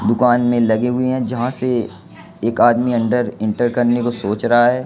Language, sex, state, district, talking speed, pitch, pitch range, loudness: Hindi, male, Madhya Pradesh, Katni, 195 wpm, 120 Hz, 120-125 Hz, -17 LUFS